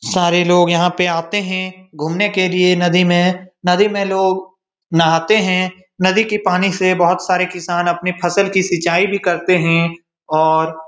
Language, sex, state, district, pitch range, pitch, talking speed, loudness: Hindi, male, Bihar, Supaul, 175-185 Hz, 180 Hz, 175 wpm, -15 LUFS